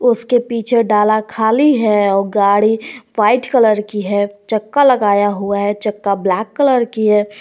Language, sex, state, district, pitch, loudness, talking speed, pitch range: Hindi, female, Jharkhand, Garhwa, 215 Hz, -14 LUFS, 160 wpm, 205-235 Hz